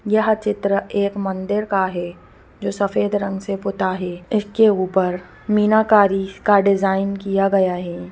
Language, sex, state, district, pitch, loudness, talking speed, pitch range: Hindi, female, Bihar, Gopalganj, 195 Hz, -19 LUFS, 150 wpm, 190-205 Hz